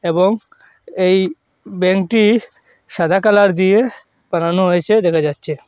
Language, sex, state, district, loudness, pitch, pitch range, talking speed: Bengali, male, Assam, Hailakandi, -15 LUFS, 185 Hz, 170-210 Hz, 105 wpm